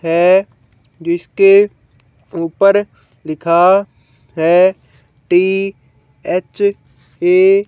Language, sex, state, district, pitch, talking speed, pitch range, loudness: Hindi, female, Haryana, Rohtak, 175 Hz, 55 wpm, 140-195 Hz, -13 LUFS